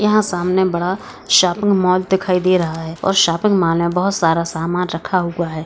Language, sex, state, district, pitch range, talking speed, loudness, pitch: Hindi, male, Bihar, Bhagalpur, 170-190 Hz, 200 wpm, -16 LUFS, 180 Hz